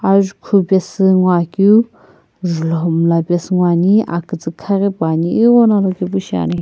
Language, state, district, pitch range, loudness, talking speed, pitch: Sumi, Nagaland, Kohima, 170-195 Hz, -14 LUFS, 155 wpm, 185 Hz